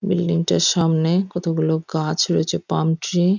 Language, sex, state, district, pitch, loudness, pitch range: Bengali, female, West Bengal, Jhargram, 165 Hz, -20 LUFS, 160-175 Hz